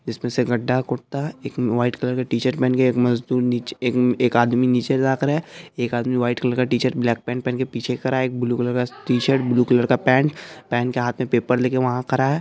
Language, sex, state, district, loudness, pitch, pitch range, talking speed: Hindi, male, Bihar, Araria, -21 LUFS, 125 Hz, 120-130 Hz, 245 wpm